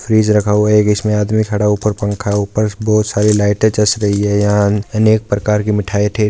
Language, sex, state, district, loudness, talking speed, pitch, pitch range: Hindi, male, Rajasthan, Churu, -14 LUFS, 230 wpm, 105 Hz, 105-110 Hz